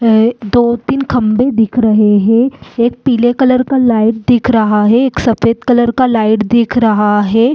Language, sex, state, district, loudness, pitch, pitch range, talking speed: Hindi, female, Chhattisgarh, Balrampur, -11 LUFS, 235 Hz, 220-250 Hz, 175 wpm